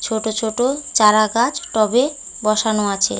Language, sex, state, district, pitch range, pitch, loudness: Bengali, female, West Bengal, Paschim Medinipur, 215-250 Hz, 220 Hz, -17 LUFS